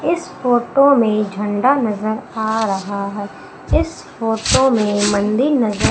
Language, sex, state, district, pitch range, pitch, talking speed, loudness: Hindi, female, Madhya Pradesh, Umaria, 205-250 Hz, 220 Hz, 130 wpm, -17 LUFS